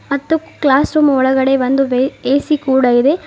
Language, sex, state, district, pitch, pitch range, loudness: Kannada, female, Karnataka, Bidar, 270 Hz, 265-290 Hz, -14 LUFS